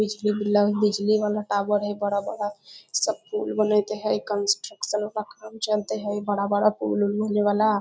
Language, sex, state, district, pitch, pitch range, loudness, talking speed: Maithili, female, Bihar, Muzaffarpur, 210 Hz, 205-210 Hz, -24 LUFS, 160 wpm